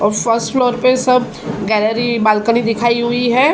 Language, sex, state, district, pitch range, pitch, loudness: Hindi, female, Maharashtra, Mumbai Suburban, 225-250 Hz, 235 Hz, -15 LUFS